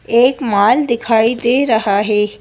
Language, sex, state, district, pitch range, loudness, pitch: Hindi, female, Madhya Pradesh, Bhopal, 210-245 Hz, -14 LUFS, 225 Hz